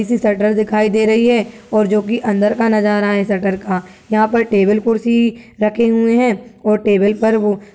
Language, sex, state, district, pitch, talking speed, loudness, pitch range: Hindi, male, Uttar Pradesh, Gorakhpur, 215 Hz, 210 wpm, -15 LUFS, 205-230 Hz